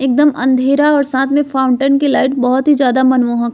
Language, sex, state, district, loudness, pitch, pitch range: Bajjika, female, Bihar, Vaishali, -13 LUFS, 265 Hz, 255-280 Hz